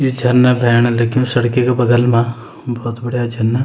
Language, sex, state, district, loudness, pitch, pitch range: Garhwali, male, Uttarakhand, Uttarkashi, -15 LUFS, 120 Hz, 120-125 Hz